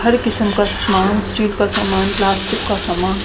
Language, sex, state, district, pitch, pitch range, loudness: Hindi, female, Haryana, Charkhi Dadri, 205 Hz, 195-215 Hz, -16 LUFS